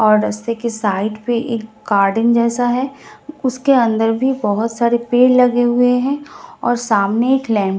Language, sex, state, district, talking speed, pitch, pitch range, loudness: Hindi, female, Delhi, New Delhi, 175 wpm, 235 Hz, 220-250 Hz, -16 LUFS